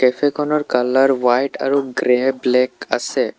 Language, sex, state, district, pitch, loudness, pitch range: Assamese, male, Assam, Sonitpur, 130 Hz, -17 LUFS, 125-140 Hz